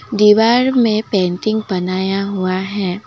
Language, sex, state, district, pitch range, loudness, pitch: Hindi, female, Assam, Kamrup Metropolitan, 185-220 Hz, -15 LUFS, 200 Hz